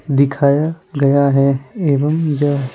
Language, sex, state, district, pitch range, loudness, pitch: Hindi, male, Bihar, Patna, 140-150 Hz, -15 LUFS, 140 Hz